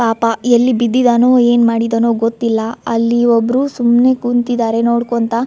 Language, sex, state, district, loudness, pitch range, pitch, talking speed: Kannada, female, Karnataka, Gulbarga, -13 LUFS, 230-245 Hz, 235 Hz, 120 wpm